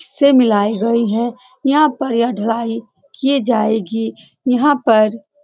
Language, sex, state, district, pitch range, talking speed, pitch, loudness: Hindi, female, Bihar, Saran, 225-275 Hz, 145 wpm, 235 Hz, -16 LUFS